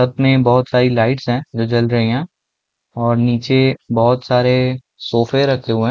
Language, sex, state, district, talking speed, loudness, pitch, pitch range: Hindi, male, Chhattisgarh, Balrampur, 185 wpm, -16 LUFS, 125 Hz, 115-130 Hz